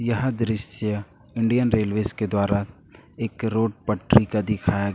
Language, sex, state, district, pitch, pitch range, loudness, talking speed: Hindi, male, Chhattisgarh, Raipur, 105 Hz, 100-115 Hz, -23 LUFS, 135 wpm